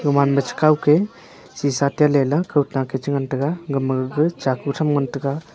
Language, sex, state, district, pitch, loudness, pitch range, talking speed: Wancho, male, Arunachal Pradesh, Longding, 140 Hz, -20 LUFS, 135-150 Hz, 205 wpm